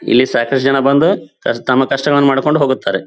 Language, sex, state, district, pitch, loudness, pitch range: Kannada, male, Karnataka, Bijapur, 135 Hz, -13 LUFS, 130-140 Hz